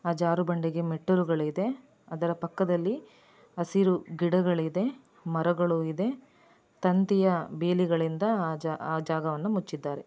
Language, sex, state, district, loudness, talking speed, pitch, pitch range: Kannada, female, Karnataka, Dakshina Kannada, -28 LUFS, 105 wpm, 175 Hz, 165-190 Hz